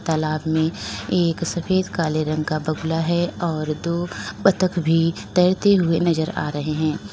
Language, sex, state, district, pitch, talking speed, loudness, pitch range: Hindi, female, Uttar Pradesh, Lalitpur, 165 Hz, 160 wpm, -21 LUFS, 155-175 Hz